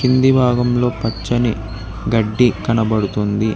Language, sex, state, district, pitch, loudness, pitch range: Telugu, male, Telangana, Hyderabad, 115 Hz, -17 LUFS, 105-120 Hz